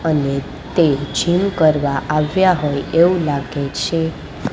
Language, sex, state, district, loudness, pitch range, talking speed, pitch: Gujarati, female, Gujarat, Gandhinagar, -17 LUFS, 140-170 Hz, 120 wpm, 150 Hz